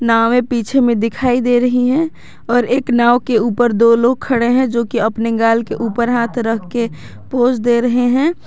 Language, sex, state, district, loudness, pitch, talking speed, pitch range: Hindi, female, Jharkhand, Garhwa, -15 LUFS, 240 Hz, 205 wpm, 230-245 Hz